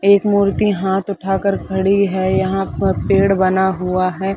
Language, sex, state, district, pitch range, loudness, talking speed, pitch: Hindi, female, Chhattisgarh, Sarguja, 190-200 Hz, -16 LUFS, 165 wpm, 195 Hz